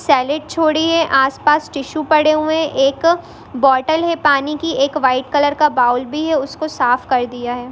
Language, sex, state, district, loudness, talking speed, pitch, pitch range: Hindi, female, Bihar, Sitamarhi, -16 LUFS, 200 wpm, 290 Hz, 265-310 Hz